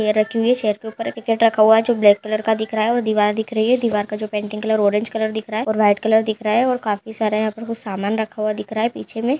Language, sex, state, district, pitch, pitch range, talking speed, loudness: Hindi, female, Uttar Pradesh, Deoria, 220 Hz, 215-225 Hz, 340 wpm, -19 LUFS